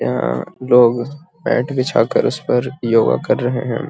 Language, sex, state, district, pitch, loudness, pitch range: Magahi, male, Bihar, Gaya, 125 Hz, -17 LUFS, 115-130 Hz